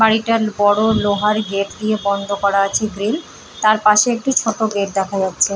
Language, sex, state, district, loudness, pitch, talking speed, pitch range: Bengali, female, West Bengal, Paschim Medinipur, -17 LUFS, 210 Hz, 175 wpm, 200-220 Hz